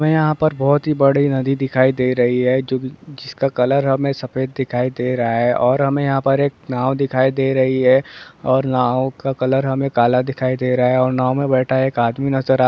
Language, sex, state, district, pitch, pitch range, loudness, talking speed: Hindi, male, Jharkhand, Sahebganj, 130 Hz, 130-135 Hz, -17 LUFS, 230 wpm